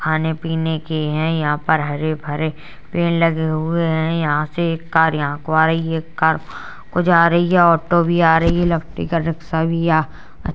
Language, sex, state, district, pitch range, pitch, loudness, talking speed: Hindi, female, Uttar Pradesh, Jalaun, 155-165 Hz, 160 Hz, -18 LUFS, 215 wpm